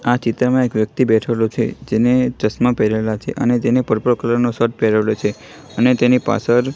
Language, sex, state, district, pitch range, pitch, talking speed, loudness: Gujarati, male, Gujarat, Gandhinagar, 110-125 Hz, 120 Hz, 185 wpm, -17 LUFS